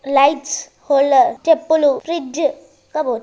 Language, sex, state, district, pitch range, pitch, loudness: Telugu, female, Telangana, Nalgonda, 280-320 Hz, 290 Hz, -17 LUFS